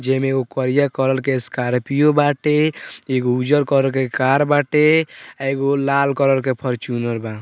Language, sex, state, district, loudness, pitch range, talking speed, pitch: Bhojpuri, male, Bihar, Muzaffarpur, -18 LUFS, 130-145 Hz, 155 wpm, 135 Hz